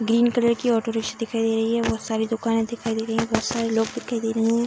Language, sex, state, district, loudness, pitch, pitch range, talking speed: Hindi, female, Bihar, Samastipur, -23 LUFS, 225 Hz, 225-235 Hz, 310 wpm